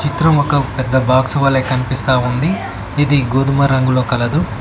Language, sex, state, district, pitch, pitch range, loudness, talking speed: Telugu, male, Telangana, Mahabubabad, 135 Hz, 130-145 Hz, -15 LUFS, 145 wpm